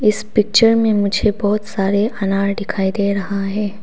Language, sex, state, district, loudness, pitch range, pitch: Hindi, female, Arunachal Pradesh, Papum Pare, -17 LUFS, 200-215 Hz, 205 Hz